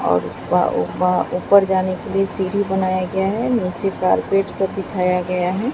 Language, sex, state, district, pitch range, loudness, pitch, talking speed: Hindi, female, Bihar, Katihar, 180-195 Hz, -19 LUFS, 190 Hz, 175 wpm